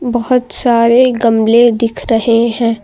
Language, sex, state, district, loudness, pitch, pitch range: Hindi, female, Uttar Pradesh, Lucknow, -11 LUFS, 235 Hz, 230-245 Hz